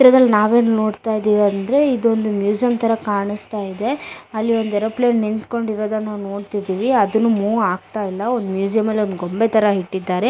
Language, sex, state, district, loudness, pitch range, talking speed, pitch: Kannada, female, Karnataka, Bellary, -18 LUFS, 205-230 Hz, 155 wpm, 215 Hz